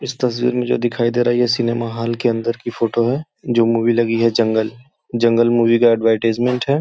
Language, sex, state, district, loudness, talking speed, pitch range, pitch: Hindi, male, Uttar Pradesh, Gorakhpur, -17 LUFS, 230 wpm, 115-120 Hz, 120 Hz